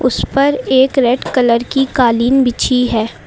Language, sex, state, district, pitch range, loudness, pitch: Hindi, female, Uttar Pradesh, Lucknow, 240-265 Hz, -13 LUFS, 255 Hz